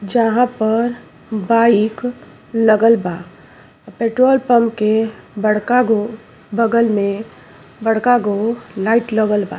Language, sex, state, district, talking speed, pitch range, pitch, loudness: Bhojpuri, female, Uttar Pradesh, Ghazipur, 115 wpm, 215-235 Hz, 225 Hz, -16 LUFS